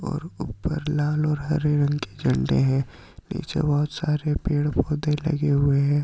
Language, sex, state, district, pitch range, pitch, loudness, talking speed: Hindi, male, Uttar Pradesh, Jyotiba Phule Nagar, 140-150 Hz, 150 Hz, -24 LUFS, 140 wpm